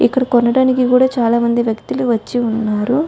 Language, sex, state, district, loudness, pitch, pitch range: Telugu, female, Andhra Pradesh, Chittoor, -15 LUFS, 240 Hz, 230-255 Hz